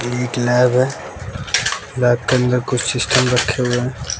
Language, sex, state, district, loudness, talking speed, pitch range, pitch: Hindi, male, Bihar, West Champaran, -17 LUFS, 155 wpm, 120-125 Hz, 125 Hz